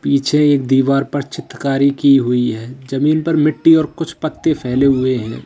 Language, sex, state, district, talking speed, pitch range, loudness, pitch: Hindi, male, Uttar Pradesh, Lalitpur, 185 wpm, 130-150 Hz, -15 LUFS, 140 Hz